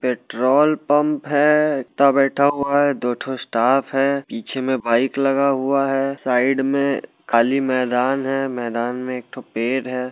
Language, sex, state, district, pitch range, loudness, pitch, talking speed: Hindi, male, Bihar, Muzaffarpur, 125-140 Hz, -19 LUFS, 135 Hz, 150 wpm